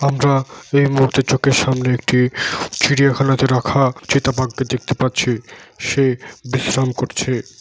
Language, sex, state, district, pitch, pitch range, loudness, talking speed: Bengali, male, West Bengal, Jalpaiguri, 130 Hz, 125-135 Hz, -17 LUFS, 120 wpm